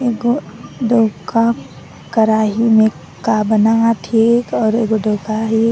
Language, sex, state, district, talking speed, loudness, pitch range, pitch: Sadri, female, Chhattisgarh, Jashpur, 105 wpm, -15 LUFS, 220-230 Hz, 225 Hz